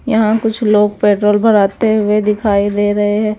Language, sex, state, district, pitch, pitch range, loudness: Hindi, female, Bihar, West Champaran, 210 Hz, 205-215 Hz, -13 LUFS